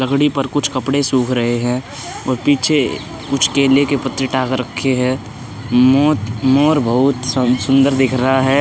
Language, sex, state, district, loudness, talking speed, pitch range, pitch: Hindi, male, Uttar Pradesh, Hamirpur, -15 LUFS, 165 wpm, 125-140 Hz, 130 Hz